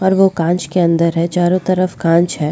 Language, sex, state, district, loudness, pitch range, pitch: Hindi, female, Goa, North and South Goa, -15 LUFS, 170-185 Hz, 175 Hz